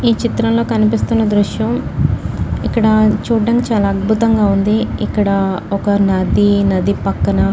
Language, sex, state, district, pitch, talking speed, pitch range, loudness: Telugu, female, Telangana, Nalgonda, 205 Hz, 110 wpm, 190-225 Hz, -15 LUFS